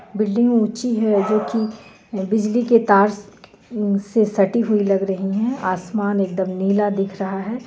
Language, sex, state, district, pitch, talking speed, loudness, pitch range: Hindi, female, Jharkhand, Ranchi, 205 Hz, 155 wpm, -19 LUFS, 195-220 Hz